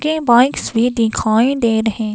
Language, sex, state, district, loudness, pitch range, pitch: Hindi, female, Himachal Pradesh, Shimla, -15 LUFS, 220-250 Hz, 235 Hz